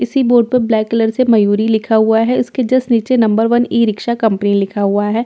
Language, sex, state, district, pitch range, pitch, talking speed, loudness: Hindi, female, Bihar, Katihar, 215-240 Hz, 225 Hz, 275 wpm, -13 LUFS